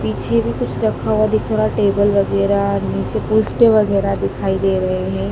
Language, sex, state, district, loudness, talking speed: Hindi, female, Madhya Pradesh, Dhar, -17 LUFS, 180 wpm